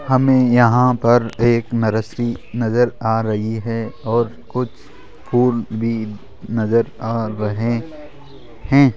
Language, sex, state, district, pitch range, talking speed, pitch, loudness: Hindi, male, Rajasthan, Jaipur, 110-125 Hz, 115 wpm, 115 Hz, -18 LUFS